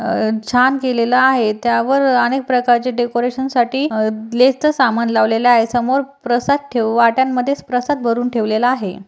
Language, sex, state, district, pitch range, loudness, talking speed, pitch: Marathi, female, Maharashtra, Aurangabad, 230-260 Hz, -16 LUFS, 140 wpm, 245 Hz